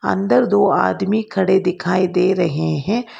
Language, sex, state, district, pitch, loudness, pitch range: Hindi, female, Karnataka, Bangalore, 180 Hz, -17 LUFS, 155-190 Hz